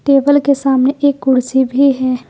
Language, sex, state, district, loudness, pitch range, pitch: Hindi, female, Jharkhand, Ranchi, -13 LUFS, 260-280 Hz, 270 Hz